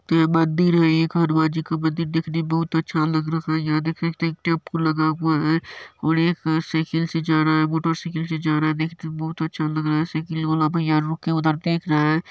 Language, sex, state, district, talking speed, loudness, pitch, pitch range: Maithili, male, Bihar, Supaul, 250 wpm, -22 LUFS, 160 Hz, 155-165 Hz